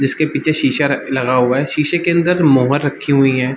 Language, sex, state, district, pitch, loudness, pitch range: Hindi, male, Bihar, Darbhanga, 140 Hz, -15 LUFS, 135-155 Hz